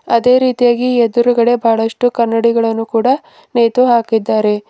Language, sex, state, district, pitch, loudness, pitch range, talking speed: Kannada, female, Karnataka, Bidar, 235 Hz, -13 LUFS, 225-245 Hz, 100 wpm